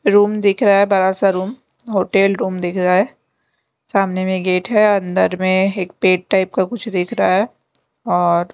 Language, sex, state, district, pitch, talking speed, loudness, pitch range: Hindi, female, Delhi, New Delhi, 190 Hz, 195 wpm, -16 LUFS, 185-205 Hz